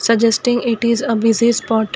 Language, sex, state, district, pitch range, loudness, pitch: English, female, Karnataka, Bangalore, 225-235 Hz, -16 LUFS, 230 Hz